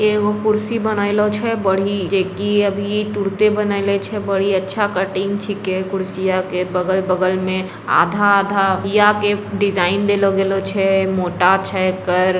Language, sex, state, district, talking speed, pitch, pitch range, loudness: Angika, female, Bihar, Begusarai, 125 wpm, 195 Hz, 190-205 Hz, -17 LUFS